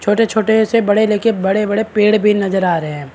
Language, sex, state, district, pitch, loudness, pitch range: Hindi, male, Maharashtra, Chandrapur, 210 Hz, -14 LUFS, 195-220 Hz